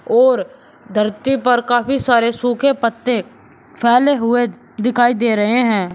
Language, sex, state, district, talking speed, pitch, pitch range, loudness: Hindi, male, Uttar Pradesh, Shamli, 130 wpm, 240 Hz, 230-250 Hz, -16 LUFS